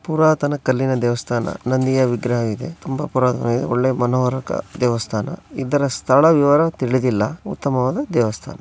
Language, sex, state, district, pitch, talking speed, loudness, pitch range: Kannada, male, Karnataka, Shimoga, 130 Hz, 120 wpm, -19 LUFS, 120-145 Hz